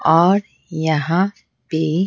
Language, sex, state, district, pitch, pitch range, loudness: Hindi, female, Bihar, Patna, 165 Hz, 160-190 Hz, -18 LUFS